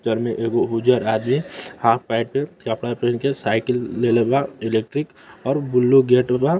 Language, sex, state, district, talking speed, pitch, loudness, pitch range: Maithili, male, Bihar, Samastipur, 170 wpm, 125 Hz, -20 LUFS, 115-135 Hz